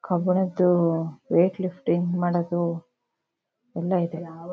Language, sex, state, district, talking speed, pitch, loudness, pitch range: Kannada, female, Karnataka, Shimoga, 80 wpm, 175 Hz, -24 LUFS, 170-180 Hz